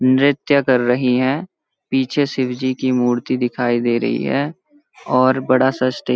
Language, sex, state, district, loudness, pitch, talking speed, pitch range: Hindi, male, Uttarakhand, Uttarkashi, -18 LUFS, 130 Hz, 165 wpm, 125-140 Hz